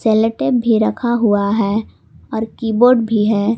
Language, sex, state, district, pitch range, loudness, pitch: Hindi, female, Jharkhand, Palamu, 215-235 Hz, -16 LUFS, 220 Hz